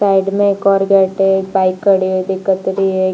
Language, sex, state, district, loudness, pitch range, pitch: Hindi, female, Chhattisgarh, Bilaspur, -14 LUFS, 190-195 Hz, 195 Hz